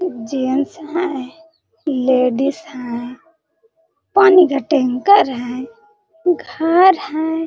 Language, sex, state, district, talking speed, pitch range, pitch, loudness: Hindi, female, Jharkhand, Sahebganj, 80 wpm, 260-360 Hz, 320 Hz, -16 LUFS